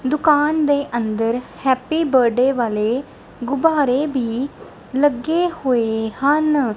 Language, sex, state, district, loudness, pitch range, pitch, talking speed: Punjabi, female, Punjab, Kapurthala, -19 LUFS, 240-295 Hz, 265 Hz, 95 wpm